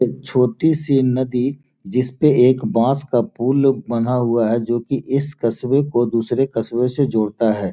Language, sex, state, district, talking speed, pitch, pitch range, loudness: Hindi, male, Bihar, Gopalganj, 170 wpm, 125 Hz, 115-135 Hz, -18 LUFS